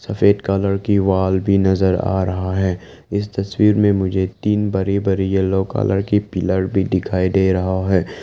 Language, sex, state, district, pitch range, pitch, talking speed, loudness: Hindi, male, Arunachal Pradesh, Lower Dibang Valley, 95-100 Hz, 95 Hz, 180 wpm, -18 LUFS